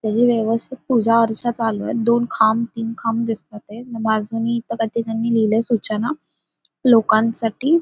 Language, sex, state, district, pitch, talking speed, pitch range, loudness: Marathi, female, Maharashtra, Solapur, 230 Hz, 130 wpm, 225-235 Hz, -19 LUFS